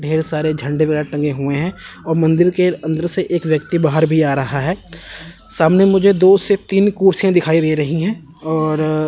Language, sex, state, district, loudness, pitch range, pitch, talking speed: Hindi, male, Chandigarh, Chandigarh, -16 LUFS, 155-185 Hz, 160 Hz, 200 wpm